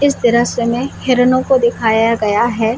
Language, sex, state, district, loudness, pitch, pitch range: Hindi, female, Jharkhand, Jamtara, -14 LUFS, 235 Hz, 230-255 Hz